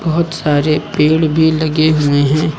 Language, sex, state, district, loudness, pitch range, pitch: Hindi, male, Uttar Pradesh, Lucknow, -13 LUFS, 150-160 Hz, 155 Hz